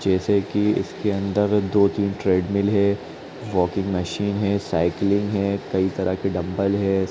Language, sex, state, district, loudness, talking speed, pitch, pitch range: Hindi, male, Chhattisgarh, Rajnandgaon, -22 LUFS, 150 wpm, 100 Hz, 95-100 Hz